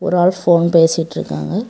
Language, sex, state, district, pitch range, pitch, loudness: Tamil, female, Tamil Nadu, Kanyakumari, 165-180 Hz, 170 Hz, -15 LUFS